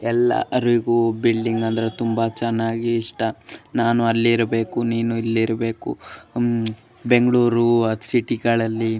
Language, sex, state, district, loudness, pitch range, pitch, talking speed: Kannada, male, Karnataka, Bellary, -20 LUFS, 115-120 Hz, 115 Hz, 105 wpm